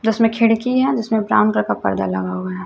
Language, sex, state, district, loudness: Hindi, female, Chhattisgarh, Raipur, -18 LUFS